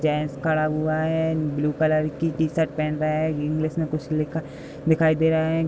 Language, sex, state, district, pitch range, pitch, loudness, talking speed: Hindi, female, Uttar Pradesh, Budaun, 155-160 Hz, 155 Hz, -23 LUFS, 200 wpm